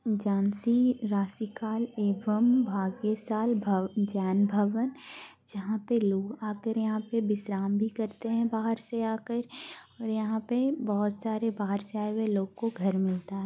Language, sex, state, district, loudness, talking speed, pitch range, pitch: Hindi, female, Bihar, Gaya, -30 LUFS, 150 wpm, 205-230 Hz, 215 Hz